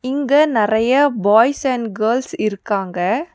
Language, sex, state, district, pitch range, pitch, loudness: Tamil, female, Tamil Nadu, Nilgiris, 215-280 Hz, 230 Hz, -17 LUFS